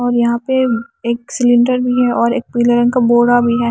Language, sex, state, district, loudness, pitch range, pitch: Hindi, female, Haryana, Charkhi Dadri, -14 LUFS, 235-250 Hz, 240 Hz